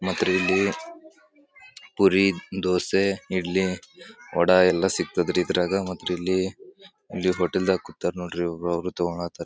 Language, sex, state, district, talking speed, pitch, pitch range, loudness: Kannada, male, Karnataka, Bijapur, 115 wpm, 95 Hz, 90-95 Hz, -24 LUFS